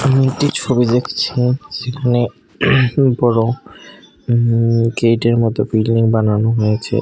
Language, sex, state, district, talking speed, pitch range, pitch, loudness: Bengali, male, Tripura, Unakoti, 105 wpm, 115-125 Hz, 120 Hz, -15 LUFS